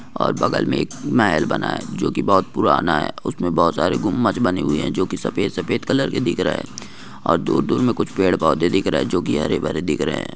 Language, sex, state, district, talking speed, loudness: Hindi, male, Rajasthan, Nagaur, 250 wpm, -20 LUFS